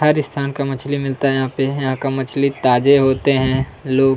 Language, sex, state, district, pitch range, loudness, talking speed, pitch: Hindi, male, Chhattisgarh, Kabirdham, 130-140 Hz, -18 LUFS, 215 wpm, 135 Hz